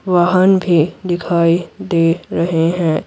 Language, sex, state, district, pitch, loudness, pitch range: Hindi, female, Bihar, Patna, 175 Hz, -15 LUFS, 165-180 Hz